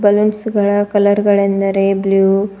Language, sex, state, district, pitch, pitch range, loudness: Kannada, female, Karnataka, Bidar, 200 Hz, 195-205 Hz, -14 LUFS